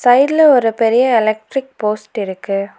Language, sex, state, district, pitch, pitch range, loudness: Tamil, female, Tamil Nadu, Nilgiris, 225 Hz, 210-260 Hz, -14 LUFS